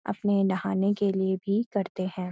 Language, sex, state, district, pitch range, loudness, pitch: Hindi, female, Uttarakhand, Uttarkashi, 190-200 Hz, -27 LUFS, 195 Hz